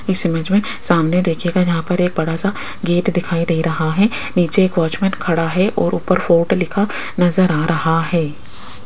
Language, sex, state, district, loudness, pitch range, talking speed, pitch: Hindi, female, Rajasthan, Jaipur, -17 LUFS, 165-190 Hz, 205 wpm, 175 Hz